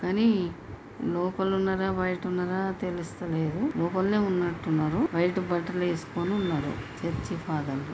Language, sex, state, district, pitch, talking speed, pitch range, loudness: Telugu, female, Telangana, Nalgonda, 180 Hz, 105 wpm, 165-190 Hz, -28 LUFS